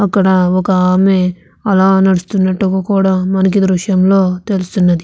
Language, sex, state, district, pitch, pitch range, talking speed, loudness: Telugu, female, Andhra Pradesh, Visakhapatnam, 190 Hz, 185-195 Hz, 105 wpm, -12 LUFS